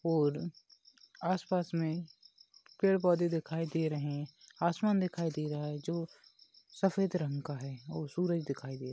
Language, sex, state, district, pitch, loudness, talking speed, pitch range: Hindi, male, Maharashtra, Nagpur, 165 Hz, -34 LUFS, 150 wpm, 150-175 Hz